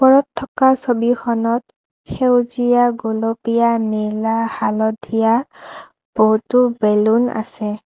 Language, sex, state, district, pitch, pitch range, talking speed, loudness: Assamese, female, Assam, Kamrup Metropolitan, 230 Hz, 220-245 Hz, 75 wpm, -17 LUFS